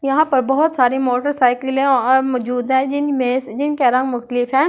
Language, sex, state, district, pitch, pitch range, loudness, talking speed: Hindi, female, Delhi, New Delhi, 265 Hz, 250-275 Hz, -17 LUFS, 190 wpm